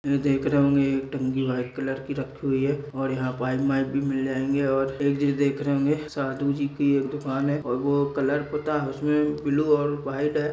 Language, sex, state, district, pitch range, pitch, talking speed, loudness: Hindi, male, Bihar, Bhagalpur, 135-145 Hz, 140 Hz, 220 wpm, -25 LUFS